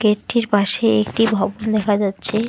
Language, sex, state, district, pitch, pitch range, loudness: Bengali, female, West Bengal, Alipurduar, 215 Hz, 205-225 Hz, -17 LUFS